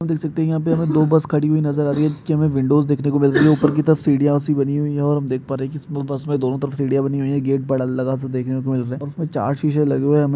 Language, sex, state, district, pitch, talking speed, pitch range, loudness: Hindi, male, Uttar Pradesh, Jyotiba Phule Nagar, 145 Hz, 175 wpm, 135-150 Hz, -19 LUFS